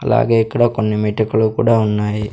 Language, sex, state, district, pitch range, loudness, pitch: Telugu, male, Andhra Pradesh, Sri Satya Sai, 105-115 Hz, -16 LUFS, 110 Hz